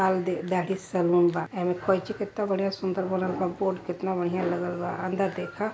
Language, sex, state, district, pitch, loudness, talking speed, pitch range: Hindi, male, Uttar Pradesh, Varanasi, 185 Hz, -28 LUFS, 155 wpm, 180-190 Hz